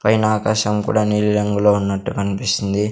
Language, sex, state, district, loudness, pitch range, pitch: Telugu, male, Andhra Pradesh, Sri Satya Sai, -18 LUFS, 100-110 Hz, 105 Hz